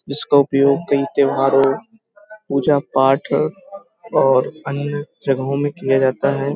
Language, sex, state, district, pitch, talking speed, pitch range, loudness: Hindi, male, Uttar Pradesh, Hamirpur, 140 Hz, 110 wpm, 135-150 Hz, -18 LUFS